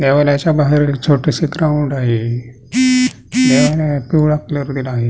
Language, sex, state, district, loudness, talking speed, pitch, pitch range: Marathi, male, Maharashtra, Pune, -15 LUFS, 130 wpm, 145 Hz, 135-160 Hz